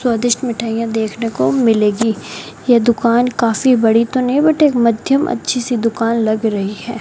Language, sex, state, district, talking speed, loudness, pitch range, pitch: Hindi, male, Rajasthan, Bikaner, 170 wpm, -15 LUFS, 225-245 Hz, 230 Hz